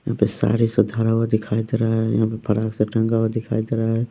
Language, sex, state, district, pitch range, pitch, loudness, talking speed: Hindi, male, Bihar, West Champaran, 110-115 Hz, 115 Hz, -21 LUFS, 290 wpm